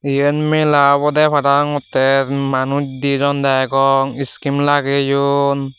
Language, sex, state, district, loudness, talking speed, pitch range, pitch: Chakma, male, Tripura, Dhalai, -15 LUFS, 95 wpm, 135-145 Hz, 140 Hz